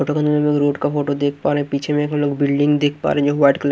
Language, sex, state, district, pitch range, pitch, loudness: Hindi, male, Haryana, Jhajjar, 145-150 Hz, 145 Hz, -18 LUFS